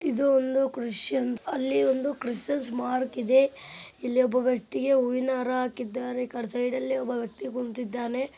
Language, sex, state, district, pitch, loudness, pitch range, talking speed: Kannada, male, Karnataka, Bellary, 250 Hz, -27 LUFS, 245-265 Hz, 135 wpm